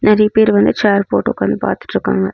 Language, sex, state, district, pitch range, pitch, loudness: Tamil, female, Tamil Nadu, Namakkal, 200-210 Hz, 205 Hz, -14 LUFS